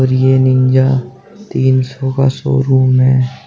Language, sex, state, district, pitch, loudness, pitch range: Hindi, male, Uttar Pradesh, Shamli, 130 Hz, -12 LUFS, 130-135 Hz